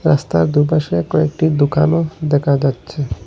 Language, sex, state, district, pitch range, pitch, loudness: Bengali, male, Assam, Hailakandi, 135-155 Hz, 145 Hz, -16 LUFS